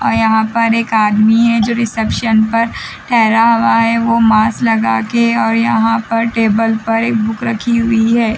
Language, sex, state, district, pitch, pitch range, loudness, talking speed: Hindi, female, Bihar, Patna, 225 Hz, 220-230 Hz, -13 LUFS, 185 wpm